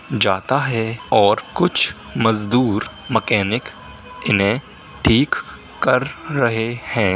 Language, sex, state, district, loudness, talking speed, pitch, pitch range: Hindi, male, Uttar Pradesh, Hamirpur, -19 LUFS, 90 wpm, 115 Hz, 105-120 Hz